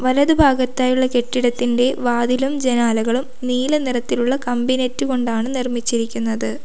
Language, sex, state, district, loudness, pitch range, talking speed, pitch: Malayalam, female, Kerala, Kollam, -19 LUFS, 240-255 Hz, 100 wpm, 250 Hz